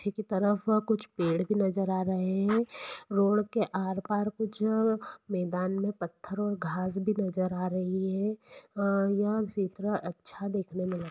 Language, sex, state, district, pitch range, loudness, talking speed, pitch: Hindi, female, Jharkhand, Sahebganj, 185-210 Hz, -30 LUFS, 180 wpm, 200 Hz